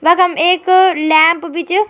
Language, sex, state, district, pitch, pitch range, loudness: Garhwali, female, Uttarakhand, Tehri Garhwal, 345 Hz, 330-365 Hz, -12 LUFS